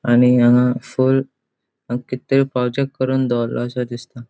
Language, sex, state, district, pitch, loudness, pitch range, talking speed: Konkani, male, Goa, North and South Goa, 125 Hz, -18 LUFS, 120-130 Hz, 155 wpm